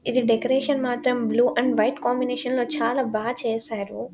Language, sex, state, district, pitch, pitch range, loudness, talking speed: Telugu, female, Telangana, Nalgonda, 245 Hz, 235-255 Hz, -23 LUFS, 160 wpm